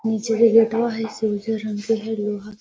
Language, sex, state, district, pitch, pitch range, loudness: Magahi, female, Bihar, Gaya, 220 Hz, 210-225 Hz, -21 LUFS